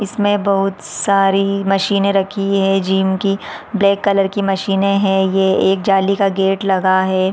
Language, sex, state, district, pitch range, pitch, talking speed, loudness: Hindi, female, Chhattisgarh, Balrampur, 190-200 Hz, 195 Hz, 165 wpm, -15 LUFS